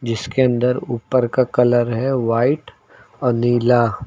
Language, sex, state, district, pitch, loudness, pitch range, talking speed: Hindi, male, Uttar Pradesh, Lucknow, 120 Hz, -18 LUFS, 120-125 Hz, 135 wpm